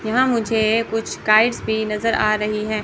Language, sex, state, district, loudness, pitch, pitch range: Hindi, female, Chandigarh, Chandigarh, -19 LUFS, 220 Hz, 215-230 Hz